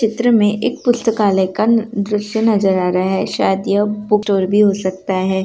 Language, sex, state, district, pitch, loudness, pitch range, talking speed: Hindi, female, Bihar, Darbhanga, 205 Hz, -16 LUFS, 190-220 Hz, 200 wpm